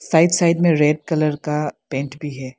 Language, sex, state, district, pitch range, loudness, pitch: Hindi, female, Arunachal Pradesh, Lower Dibang Valley, 145-165 Hz, -19 LUFS, 150 Hz